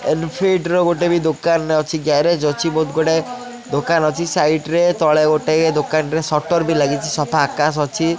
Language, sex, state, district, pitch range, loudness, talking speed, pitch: Odia, male, Odisha, Khordha, 155-170 Hz, -17 LUFS, 170 wpm, 160 Hz